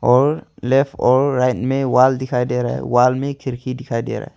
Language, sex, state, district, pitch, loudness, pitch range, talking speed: Hindi, male, Arunachal Pradesh, Longding, 130 Hz, -18 LUFS, 125-135 Hz, 235 wpm